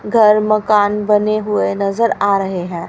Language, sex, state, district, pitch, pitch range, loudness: Hindi, female, Haryana, Rohtak, 210 Hz, 195-215 Hz, -15 LUFS